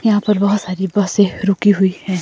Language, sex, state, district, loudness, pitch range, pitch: Hindi, female, Himachal Pradesh, Shimla, -16 LUFS, 190-205 Hz, 200 Hz